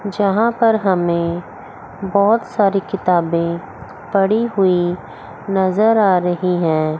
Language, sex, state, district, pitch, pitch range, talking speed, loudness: Hindi, female, Chandigarh, Chandigarh, 190 Hz, 170-200 Hz, 105 wpm, -17 LUFS